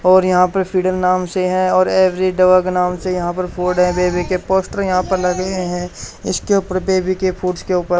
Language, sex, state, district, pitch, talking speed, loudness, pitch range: Hindi, male, Haryana, Charkhi Dadri, 185 Hz, 240 wpm, -16 LUFS, 180-185 Hz